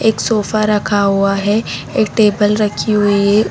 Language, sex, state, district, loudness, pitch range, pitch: Hindi, female, Chhattisgarh, Bastar, -14 LUFS, 205-215 Hz, 210 Hz